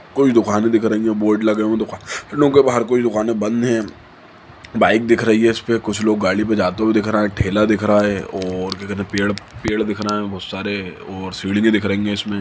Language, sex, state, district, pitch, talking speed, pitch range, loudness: Hindi, male, Bihar, Samastipur, 105 Hz, 250 wpm, 100-110 Hz, -18 LUFS